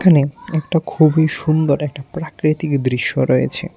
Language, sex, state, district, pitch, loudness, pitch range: Bengali, male, Tripura, West Tripura, 155 Hz, -17 LUFS, 140-160 Hz